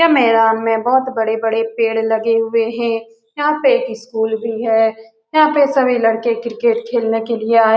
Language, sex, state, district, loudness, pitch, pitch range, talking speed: Hindi, female, Bihar, Saran, -16 LUFS, 230 Hz, 225-240 Hz, 195 wpm